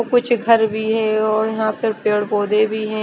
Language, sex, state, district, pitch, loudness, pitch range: Hindi, female, Chandigarh, Chandigarh, 220 Hz, -18 LUFS, 215-225 Hz